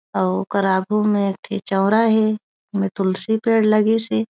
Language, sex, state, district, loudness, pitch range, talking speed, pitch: Chhattisgarhi, female, Chhattisgarh, Raigarh, -19 LUFS, 195-220 Hz, 180 wpm, 205 Hz